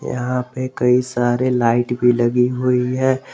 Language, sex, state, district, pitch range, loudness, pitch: Hindi, male, Jharkhand, Garhwa, 120-125 Hz, -18 LUFS, 125 Hz